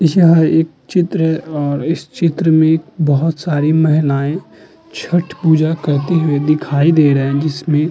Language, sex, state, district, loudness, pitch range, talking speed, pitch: Hindi, male, Uttar Pradesh, Muzaffarnagar, -14 LUFS, 150-165 Hz, 150 wpm, 160 Hz